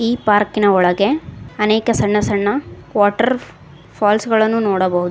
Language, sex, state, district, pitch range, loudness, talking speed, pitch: Kannada, female, Karnataka, Koppal, 195-225 Hz, -16 LUFS, 115 wpm, 210 Hz